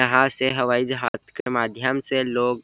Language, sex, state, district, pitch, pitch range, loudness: Hindi, male, Chhattisgarh, Bilaspur, 125 Hz, 120-130 Hz, -23 LUFS